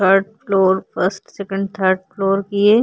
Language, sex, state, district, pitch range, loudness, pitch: Hindi, female, Uttar Pradesh, Jyotiba Phule Nagar, 190-200 Hz, -18 LUFS, 195 Hz